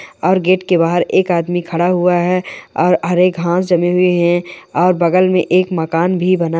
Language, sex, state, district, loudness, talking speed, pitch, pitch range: Hindi, male, Andhra Pradesh, Anantapur, -14 LUFS, 200 wpm, 180 Hz, 175-180 Hz